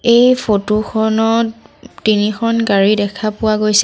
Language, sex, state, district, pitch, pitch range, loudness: Assamese, female, Assam, Sonitpur, 220 Hz, 210-230 Hz, -15 LUFS